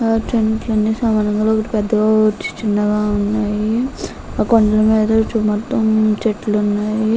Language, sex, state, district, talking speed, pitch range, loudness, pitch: Telugu, female, Andhra Pradesh, Guntur, 65 wpm, 210-220 Hz, -16 LUFS, 215 Hz